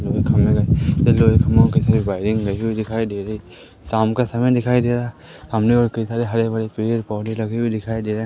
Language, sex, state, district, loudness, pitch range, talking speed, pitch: Hindi, male, Madhya Pradesh, Katni, -19 LUFS, 110-115 Hz, 260 wpm, 110 Hz